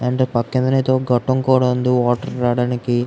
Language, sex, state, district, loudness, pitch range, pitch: Telugu, female, Andhra Pradesh, Guntur, -18 LUFS, 120-130 Hz, 125 Hz